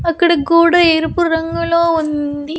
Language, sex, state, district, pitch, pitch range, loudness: Telugu, female, Andhra Pradesh, Annamaya, 335 Hz, 320-335 Hz, -14 LUFS